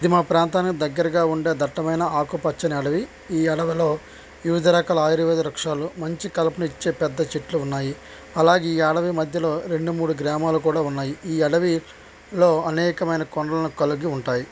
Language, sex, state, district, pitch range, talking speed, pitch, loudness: Telugu, male, Andhra Pradesh, Srikakulam, 155-170 Hz, 145 wpm, 160 Hz, -22 LUFS